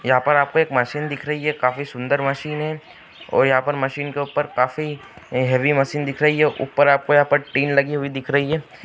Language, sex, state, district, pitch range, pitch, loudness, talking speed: Hindi, male, Andhra Pradesh, Anantapur, 135-150 Hz, 145 Hz, -20 LUFS, 215 wpm